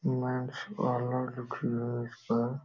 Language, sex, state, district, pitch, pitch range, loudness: Hindi, male, Uttar Pradesh, Jalaun, 125 Hz, 120-125 Hz, -33 LUFS